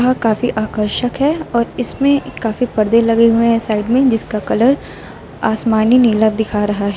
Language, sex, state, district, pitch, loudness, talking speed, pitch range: Hindi, female, Uttar Pradesh, Lucknow, 230 Hz, -15 LUFS, 170 wpm, 220-245 Hz